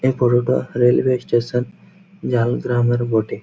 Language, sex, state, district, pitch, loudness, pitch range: Bengali, male, West Bengal, Jhargram, 120 Hz, -18 LUFS, 120-130 Hz